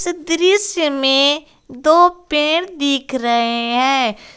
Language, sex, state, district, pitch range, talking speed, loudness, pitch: Hindi, female, Jharkhand, Garhwa, 260-335 Hz, 95 wpm, -15 LUFS, 295 Hz